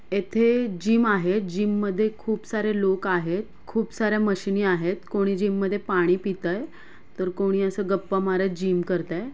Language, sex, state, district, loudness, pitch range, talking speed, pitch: Marathi, female, Maharashtra, Pune, -24 LUFS, 185-215 Hz, 155 wpm, 195 Hz